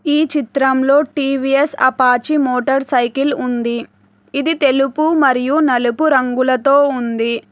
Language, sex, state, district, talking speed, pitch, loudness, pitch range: Telugu, female, Telangana, Hyderabad, 105 wpm, 270 Hz, -15 LUFS, 255-290 Hz